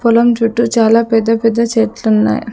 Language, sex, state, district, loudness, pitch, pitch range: Telugu, female, Andhra Pradesh, Sri Satya Sai, -12 LUFS, 230 Hz, 225-235 Hz